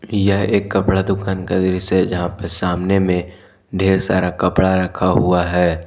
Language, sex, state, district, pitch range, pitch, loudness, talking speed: Hindi, male, Jharkhand, Ranchi, 90-95 Hz, 95 Hz, -17 LUFS, 175 wpm